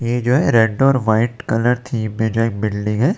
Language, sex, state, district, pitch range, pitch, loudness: Hindi, male, Chandigarh, Chandigarh, 110-125 Hz, 115 Hz, -17 LUFS